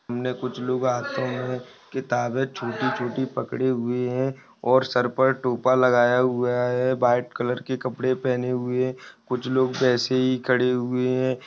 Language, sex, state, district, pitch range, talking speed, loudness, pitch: Hindi, male, Rajasthan, Churu, 125-130 Hz, 160 wpm, -24 LUFS, 125 Hz